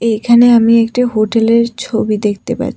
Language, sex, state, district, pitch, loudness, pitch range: Bengali, female, Tripura, West Tripura, 230 Hz, -12 LUFS, 225-240 Hz